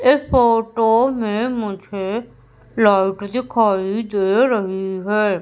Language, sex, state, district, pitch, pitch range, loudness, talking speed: Hindi, female, Madhya Pradesh, Umaria, 215 Hz, 195-235 Hz, -18 LUFS, 100 wpm